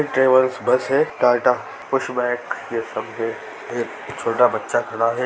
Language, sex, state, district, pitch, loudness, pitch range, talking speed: Hindi, female, Bihar, Darbhanga, 125 Hz, -21 LUFS, 115-130 Hz, 160 wpm